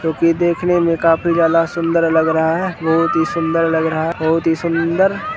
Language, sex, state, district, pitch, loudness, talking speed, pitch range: Maithili, male, Bihar, Begusarai, 165 Hz, -16 LUFS, 225 wpm, 160-170 Hz